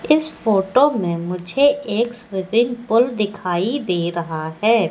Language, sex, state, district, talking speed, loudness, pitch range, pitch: Hindi, female, Madhya Pradesh, Katni, 135 wpm, -19 LUFS, 180-240 Hz, 215 Hz